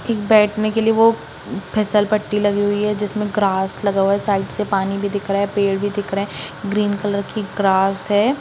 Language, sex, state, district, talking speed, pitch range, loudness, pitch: Hindi, female, Bihar, Sitamarhi, 220 wpm, 200-210 Hz, -18 LUFS, 205 Hz